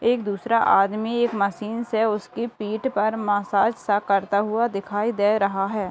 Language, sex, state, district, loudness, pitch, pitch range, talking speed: Hindi, female, Bihar, Gopalganj, -23 LUFS, 215 Hz, 205-230 Hz, 160 wpm